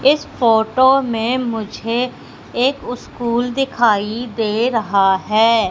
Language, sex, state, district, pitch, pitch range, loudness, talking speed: Hindi, female, Madhya Pradesh, Katni, 235 Hz, 220-250 Hz, -17 LUFS, 105 wpm